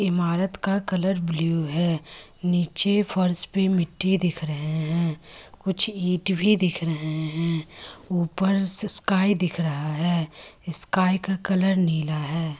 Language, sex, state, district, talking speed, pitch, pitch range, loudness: Hindi, female, Bihar, Lakhisarai, 135 wpm, 175 Hz, 160-190 Hz, -22 LUFS